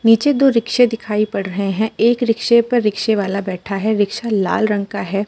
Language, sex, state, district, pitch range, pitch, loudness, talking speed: Hindi, female, Uttar Pradesh, Muzaffarnagar, 200-235 Hz, 215 Hz, -17 LUFS, 215 wpm